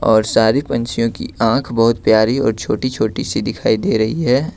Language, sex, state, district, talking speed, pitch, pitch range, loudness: Hindi, male, Jharkhand, Ranchi, 195 wpm, 115 Hz, 110-130 Hz, -16 LUFS